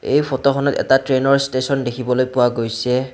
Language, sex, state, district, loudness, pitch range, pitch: Assamese, male, Assam, Kamrup Metropolitan, -18 LUFS, 125-140 Hz, 130 Hz